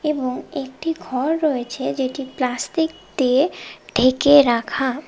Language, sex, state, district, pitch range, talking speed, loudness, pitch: Bengali, female, West Bengal, Cooch Behar, 255-305 Hz, 105 wpm, -20 LUFS, 275 Hz